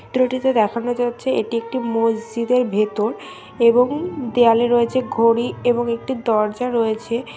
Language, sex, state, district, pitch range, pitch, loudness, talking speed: Bengali, female, West Bengal, Dakshin Dinajpur, 230-250 Hz, 235 Hz, -19 LUFS, 140 wpm